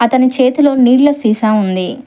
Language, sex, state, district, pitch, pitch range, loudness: Telugu, female, Telangana, Hyderabad, 255 Hz, 220-260 Hz, -11 LUFS